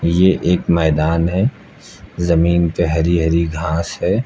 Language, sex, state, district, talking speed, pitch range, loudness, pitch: Hindi, male, Uttar Pradesh, Lucknow, 140 wpm, 80-85 Hz, -16 LUFS, 85 Hz